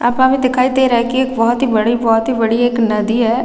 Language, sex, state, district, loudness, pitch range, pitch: Hindi, female, Chhattisgarh, Raigarh, -14 LUFS, 230-255 Hz, 240 Hz